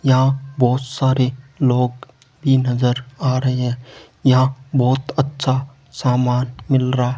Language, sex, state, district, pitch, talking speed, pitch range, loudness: Hindi, male, Rajasthan, Jaipur, 130 Hz, 135 wpm, 125-135 Hz, -19 LUFS